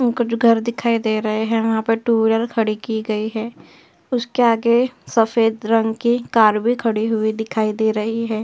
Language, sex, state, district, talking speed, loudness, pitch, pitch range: Hindi, female, Uttar Pradesh, Jyotiba Phule Nagar, 185 wpm, -19 LUFS, 225 Hz, 220-235 Hz